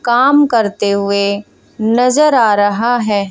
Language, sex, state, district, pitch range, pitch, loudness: Hindi, female, Haryana, Jhajjar, 200-245 Hz, 220 Hz, -13 LUFS